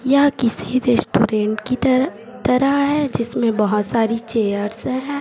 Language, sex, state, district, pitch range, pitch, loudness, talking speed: Hindi, female, Chhattisgarh, Raipur, 215-265 Hz, 240 Hz, -19 LUFS, 140 wpm